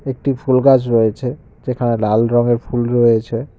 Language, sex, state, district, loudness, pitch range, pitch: Bengali, male, West Bengal, Cooch Behar, -16 LUFS, 115-130 Hz, 120 Hz